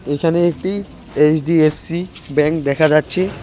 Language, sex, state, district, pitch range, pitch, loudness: Bengali, male, West Bengal, Alipurduar, 150-175 Hz, 160 Hz, -17 LUFS